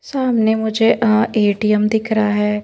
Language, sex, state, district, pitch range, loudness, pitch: Hindi, female, Madhya Pradesh, Bhopal, 210-225 Hz, -16 LUFS, 220 Hz